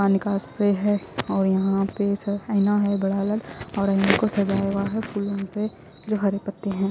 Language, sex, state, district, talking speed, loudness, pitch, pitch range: Hindi, female, Odisha, Khordha, 190 wpm, -24 LUFS, 200 Hz, 195-205 Hz